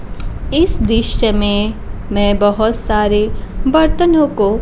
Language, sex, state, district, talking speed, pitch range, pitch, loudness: Hindi, female, Bihar, Kaimur, 105 wpm, 205-270 Hz, 215 Hz, -15 LUFS